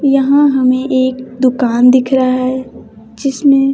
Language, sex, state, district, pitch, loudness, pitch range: Hindi, male, Bihar, West Champaran, 260 Hz, -12 LUFS, 255-275 Hz